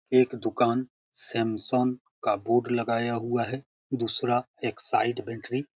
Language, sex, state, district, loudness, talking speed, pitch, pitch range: Hindi, male, Bihar, Saran, -28 LUFS, 135 wpm, 120 Hz, 115-125 Hz